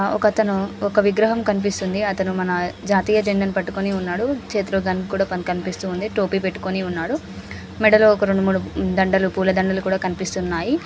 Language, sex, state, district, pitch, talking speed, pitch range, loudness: Telugu, female, Andhra Pradesh, Srikakulam, 195 Hz, 155 wpm, 185-205 Hz, -20 LUFS